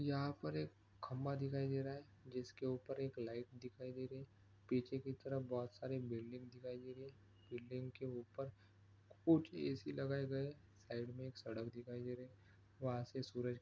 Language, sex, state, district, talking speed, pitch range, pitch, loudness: Hindi, male, Maharashtra, Solapur, 200 wpm, 115-135 Hz, 125 Hz, -46 LUFS